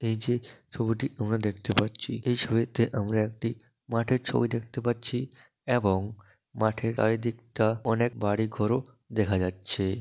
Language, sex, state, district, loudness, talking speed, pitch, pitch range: Bengali, male, West Bengal, Dakshin Dinajpur, -29 LUFS, 140 wpm, 115 Hz, 110-120 Hz